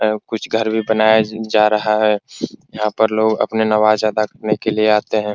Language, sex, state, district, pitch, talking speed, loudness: Hindi, male, Bihar, Supaul, 110 Hz, 190 wpm, -16 LUFS